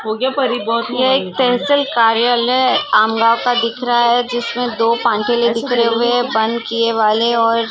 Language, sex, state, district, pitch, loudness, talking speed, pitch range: Hindi, female, Maharashtra, Gondia, 235 Hz, -15 LUFS, 110 wpm, 230-245 Hz